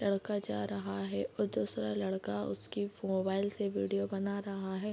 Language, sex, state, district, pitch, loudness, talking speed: Hindi, female, Bihar, Bhagalpur, 190 Hz, -36 LUFS, 180 wpm